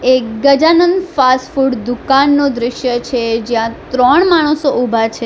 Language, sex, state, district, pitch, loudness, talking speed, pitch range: Gujarati, female, Gujarat, Valsad, 255 Hz, -13 LUFS, 135 wpm, 240-285 Hz